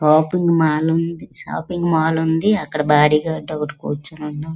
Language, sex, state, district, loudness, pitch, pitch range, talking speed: Telugu, female, Andhra Pradesh, Srikakulam, -18 LUFS, 160 Hz, 150-165 Hz, 130 wpm